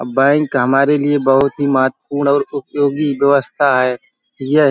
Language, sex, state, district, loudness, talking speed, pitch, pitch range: Hindi, male, Uttar Pradesh, Hamirpur, -15 LUFS, 165 wpm, 140 Hz, 135-145 Hz